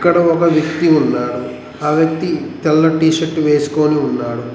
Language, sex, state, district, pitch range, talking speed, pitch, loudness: Telugu, male, Telangana, Mahabubabad, 135-160 Hz, 130 wpm, 155 Hz, -15 LUFS